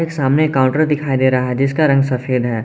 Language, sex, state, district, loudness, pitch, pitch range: Hindi, male, Jharkhand, Garhwa, -16 LUFS, 135 Hz, 130-150 Hz